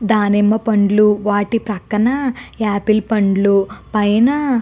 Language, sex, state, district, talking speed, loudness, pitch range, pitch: Telugu, female, Andhra Pradesh, Guntur, 105 wpm, -16 LUFS, 205-225 Hz, 210 Hz